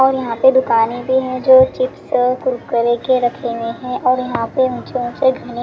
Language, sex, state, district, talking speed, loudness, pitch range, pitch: Hindi, female, Delhi, New Delhi, 200 wpm, -16 LUFS, 240-260 Hz, 255 Hz